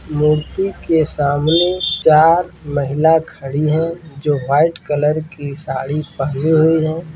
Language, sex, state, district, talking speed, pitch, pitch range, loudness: Hindi, male, Rajasthan, Churu, 125 wpm, 155 Hz, 145-160 Hz, -16 LUFS